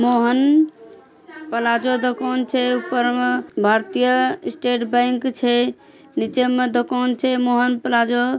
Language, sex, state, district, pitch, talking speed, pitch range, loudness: Angika, female, Bihar, Bhagalpur, 250 Hz, 115 wpm, 245-255 Hz, -19 LUFS